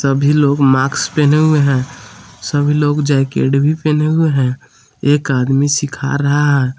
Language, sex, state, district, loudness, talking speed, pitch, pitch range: Hindi, male, Jharkhand, Palamu, -14 LUFS, 160 wpm, 140 Hz, 135-150 Hz